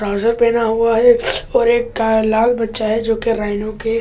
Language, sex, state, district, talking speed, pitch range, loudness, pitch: Hindi, male, Delhi, New Delhi, 255 wpm, 220-235 Hz, -15 LUFS, 225 Hz